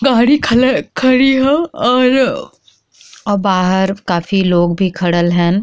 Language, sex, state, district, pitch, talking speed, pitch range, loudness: Bhojpuri, female, Uttar Pradesh, Gorakhpur, 225 Hz, 105 wpm, 185-265 Hz, -13 LUFS